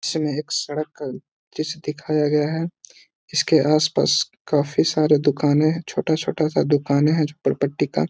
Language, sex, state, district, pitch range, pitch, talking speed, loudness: Hindi, male, Bihar, Jahanabad, 145-155 Hz, 150 Hz, 140 wpm, -21 LUFS